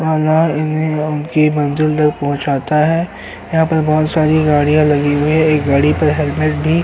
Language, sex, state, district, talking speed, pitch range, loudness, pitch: Hindi, male, Uttar Pradesh, Hamirpur, 165 wpm, 150-155 Hz, -14 LUFS, 155 Hz